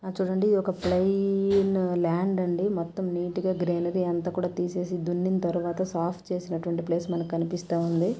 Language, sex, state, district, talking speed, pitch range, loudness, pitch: Telugu, female, Telangana, Nalgonda, 155 wpm, 175-185 Hz, -27 LUFS, 180 Hz